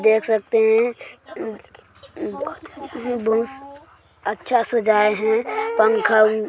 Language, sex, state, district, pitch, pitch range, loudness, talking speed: Hindi, male, Chhattisgarh, Sarguja, 225 Hz, 220-245 Hz, -20 LUFS, 75 wpm